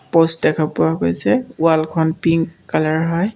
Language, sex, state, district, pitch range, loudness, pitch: Assamese, male, Assam, Kamrup Metropolitan, 155-165 Hz, -17 LUFS, 160 Hz